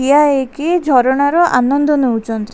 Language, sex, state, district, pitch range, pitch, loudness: Odia, female, Odisha, Khordha, 250-295 Hz, 275 Hz, -13 LUFS